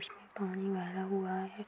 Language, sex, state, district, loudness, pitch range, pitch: Hindi, female, Uttar Pradesh, Budaun, -38 LUFS, 190-195 Hz, 190 Hz